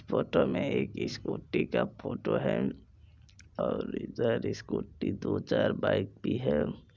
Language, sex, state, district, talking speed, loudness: Maithili, male, Bihar, Supaul, 130 wpm, -32 LUFS